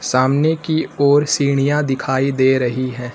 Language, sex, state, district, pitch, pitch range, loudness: Hindi, male, Uttar Pradesh, Lucknow, 135 Hz, 130-145 Hz, -17 LUFS